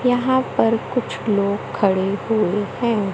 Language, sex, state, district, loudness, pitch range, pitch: Hindi, male, Madhya Pradesh, Katni, -20 LUFS, 200-245 Hz, 215 Hz